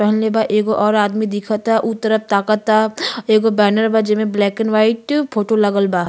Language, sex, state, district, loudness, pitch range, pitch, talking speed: Bhojpuri, female, Uttar Pradesh, Gorakhpur, -16 LUFS, 210-220 Hz, 215 Hz, 185 wpm